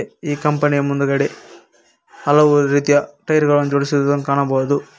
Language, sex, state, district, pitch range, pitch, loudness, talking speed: Kannada, male, Karnataka, Koppal, 140-145 Hz, 145 Hz, -17 LUFS, 120 wpm